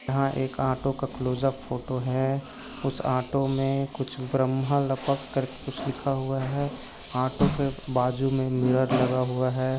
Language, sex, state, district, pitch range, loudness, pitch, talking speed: Hindi, male, Maharashtra, Sindhudurg, 130-135 Hz, -27 LUFS, 135 Hz, 160 wpm